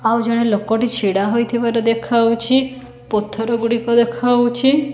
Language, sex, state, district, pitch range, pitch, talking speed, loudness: Odia, female, Odisha, Khordha, 225-240 Hz, 235 Hz, 95 wpm, -16 LUFS